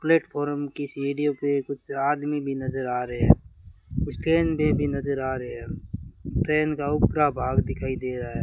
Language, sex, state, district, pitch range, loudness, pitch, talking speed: Hindi, male, Rajasthan, Bikaner, 125-145 Hz, -26 LUFS, 140 Hz, 190 wpm